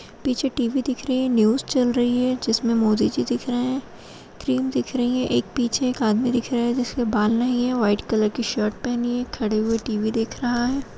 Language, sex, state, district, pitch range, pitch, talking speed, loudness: Hindi, female, Chhattisgarh, Rajnandgaon, 225-255 Hz, 245 Hz, 225 wpm, -22 LUFS